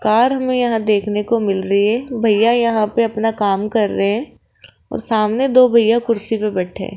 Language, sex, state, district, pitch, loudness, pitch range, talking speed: Hindi, female, Rajasthan, Jaipur, 225 Hz, -16 LUFS, 210-235 Hz, 205 wpm